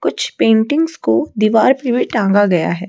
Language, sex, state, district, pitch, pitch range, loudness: Hindi, female, Odisha, Malkangiri, 220 Hz, 200-260 Hz, -14 LUFS